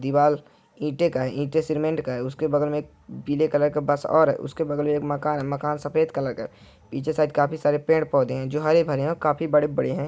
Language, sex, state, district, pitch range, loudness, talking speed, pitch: Hindi, male, Chhattisgarh, Bilaspur, 145-155 Hz, -24 LUFS, 250 wpm, 150 Hz